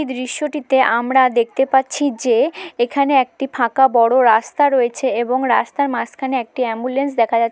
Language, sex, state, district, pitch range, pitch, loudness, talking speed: Bengali, female, West Bengal, Malda, 240-275 Hz, 260 Hz, -17 LUFS, 145 wpm